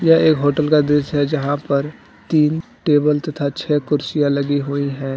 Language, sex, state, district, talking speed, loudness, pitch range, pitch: Hindi, male, Jharkhand, Deoghar, 185 wpm, -18 LUFS, 140-155 Hz, 145 Hz